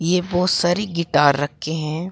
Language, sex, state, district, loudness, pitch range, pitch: Hindi, female, Uttar Pradesh, Shamli, -19 LUFS, 155-180 Hz, 170 Hz